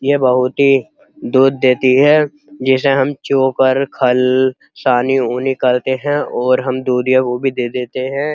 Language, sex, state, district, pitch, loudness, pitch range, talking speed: Hindi, male, Uttar Pradesh, Muzaffarnagar, 130 Hz, -14 LUFS, 130-140 Hz, 145 wpm